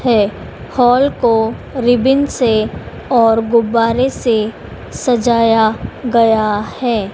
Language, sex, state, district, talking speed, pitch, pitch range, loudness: Hindi, female, Madhya Pradesh, Dhar, 90 wpm, 235 Hz, 220-245 Hz, -14 LUFS